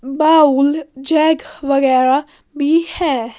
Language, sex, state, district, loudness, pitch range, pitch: Hindi, female, Haryana, Jhajjar, -15 LUFS, 270-310 Hz, 285 Hz